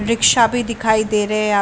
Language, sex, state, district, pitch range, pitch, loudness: Hindi, female, Bihar, Saran, 210-230 Hz, 220 Hz, -16 LUFS